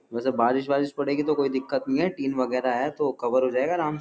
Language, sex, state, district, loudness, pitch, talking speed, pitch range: Hindi, male, Uttar Pradesh, Jyotiba Phule Nagar, -25 LUFS, 135 Hz, 255 wpm, 130-150 Hz